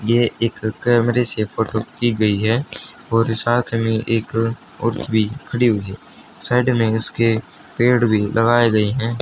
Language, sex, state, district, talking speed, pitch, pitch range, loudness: Hindi, male, Haryana, Charkhi Dadri, 160 wpm, 115 Hz, 110-120 Hz, -19 LUFS